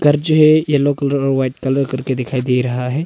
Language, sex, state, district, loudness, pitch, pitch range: Hindi, male, Arunachal Pradesh, Longding, -16 LUFS, 135 Hz, 130-145 Hz